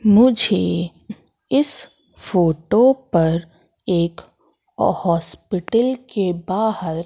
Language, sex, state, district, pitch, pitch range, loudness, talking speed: Hindi, female, Madhya Pradesh, Katni, 190 Hz, 170-230 Hz, -18 LUFS, 70 wpm